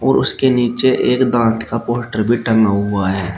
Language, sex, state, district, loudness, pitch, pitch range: Hindi, male, Uttar Pradesh, Shamli, -15 LUFS, 115 Hz, 105-120 Hz